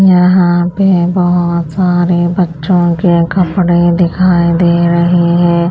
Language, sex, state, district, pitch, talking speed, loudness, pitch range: Hindi, female, Punjab, Pathankot, 175 Hz, 115 wpm, -10 LUFS, 170-180 Hz